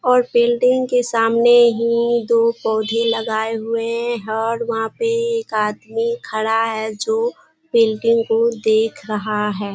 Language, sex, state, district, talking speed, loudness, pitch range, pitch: Hindi, female, Bihar, Kishanganj, 140 wpm, -18 LUFS, 220-240 Hz, 230 Hz